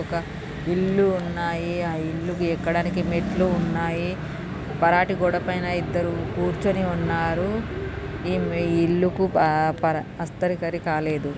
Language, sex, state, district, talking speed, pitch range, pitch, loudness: Telugu, female, Telangana, Karimnagar, 100 wpm, 165-180 Hz, 170 Hz, -24 LUFS